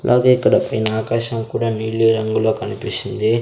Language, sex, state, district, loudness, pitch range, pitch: Telugu, male, Andhra Pradesh, Sri Satya Sai, -18 LUFS, 110-115 Hz, 115 Hz